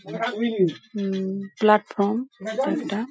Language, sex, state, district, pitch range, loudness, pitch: Bengali, female, West Bengal, Paschim Medinipur, 195-230 Hz, -24 LUFS, 210 Hz